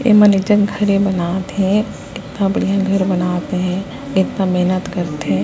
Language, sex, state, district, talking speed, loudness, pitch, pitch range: Surgujia, female, Chhattisgarh, Sarguja, 165 wpm, -17 LUFS, 190 Hz, 180-200 Hz